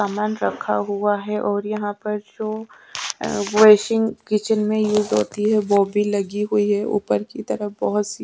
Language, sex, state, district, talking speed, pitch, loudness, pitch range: Hindi, female, Haryana, Charkhi Dadri, 175 wpm, 210 Hz, -20 LUFS, 205-215 Hz